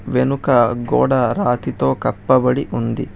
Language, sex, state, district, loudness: Telugu, male, Telangana, Hyderabad, -17 LUFS